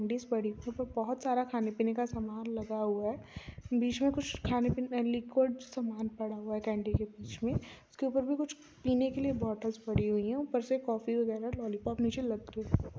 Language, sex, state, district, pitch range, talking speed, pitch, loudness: Hindi, female, Andhra Pradesh, Chittoor, 220-255 Hz, 180 wpm, 235 Hz, -34 LUFS